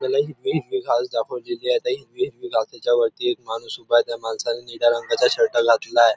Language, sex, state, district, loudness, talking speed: Marathi, male, Maharashtra, Nagpur, -22 LUFS, 205 wpm